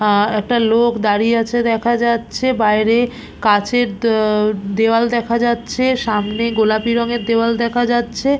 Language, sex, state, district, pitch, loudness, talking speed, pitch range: Bengali, female, West Bengal, Purulia, 230 Hz, -16 LUFS, 135 wpm, 215-240 Hz